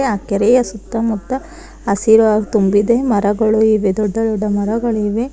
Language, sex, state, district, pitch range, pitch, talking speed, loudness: Kannada, female, Karnataka, Bangalore, 205-235 Hz, 220 Hz, 115 wpm, -15 LUFS